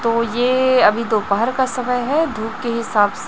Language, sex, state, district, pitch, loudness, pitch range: Hindi, female, Chhattisgarh, Raipur, 235 Hz, -18 LUFS, 225-255 Hz